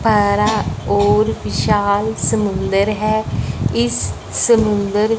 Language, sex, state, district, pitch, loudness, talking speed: Hindi, female, Punjab, Fazilka, 200 Hz, -17 LUFS, 80 wpm